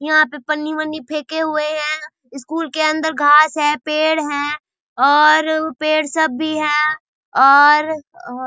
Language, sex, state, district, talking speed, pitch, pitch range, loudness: Hindi, female, Bihar, Saharsa, 140 wpm, 305 Hz, 295-315 Hz, -16 LUFS